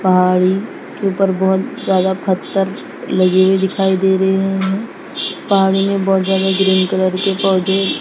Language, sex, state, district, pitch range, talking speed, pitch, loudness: Hindi, female, Maharashtra, Gondia, 190-195 Hz, 155 wpm, 190 Hz, -15 LUFS